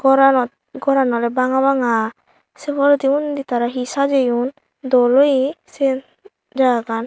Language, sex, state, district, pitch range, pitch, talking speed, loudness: Chakma, female, Tripura, Unakoti, 245-275 Hz, 270 Hz, 135 wpm, -17 LUFS